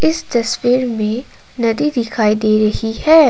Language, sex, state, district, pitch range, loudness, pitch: Hindi, female, Assam, Kamrup Metropolitan, 215-245 Hz, -16 LUFS, 230 Hz